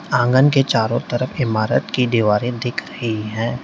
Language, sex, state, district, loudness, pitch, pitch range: Hindi, male, Uttar Pradesh, Lalitpur, -18 LUFS, 120 Hz, 110-125 Hz